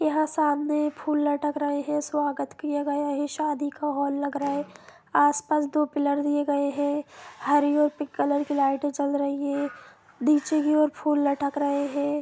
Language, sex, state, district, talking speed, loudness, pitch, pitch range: Hindi, female, Jharkhand, Jamtara, 185 wpm, -26 LUFS, 290 Hz, 285-295 Hz